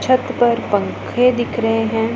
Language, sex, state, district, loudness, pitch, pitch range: Hindi, female, Punjab, Pathankot, -17 LUFS, 235 Hz, 225-250 Hz